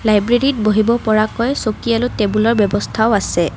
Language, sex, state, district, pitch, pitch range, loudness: Assamese, female, Assam, Kamrup Metropolitan, 220 Hz, 210-230 Hz, -16 LUFS